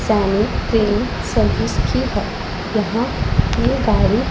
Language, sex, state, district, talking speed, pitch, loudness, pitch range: Hindi, female, Punjab, Pathankot, 125 wpm, 215 Hz, -18 LUFS, 205-225 Hz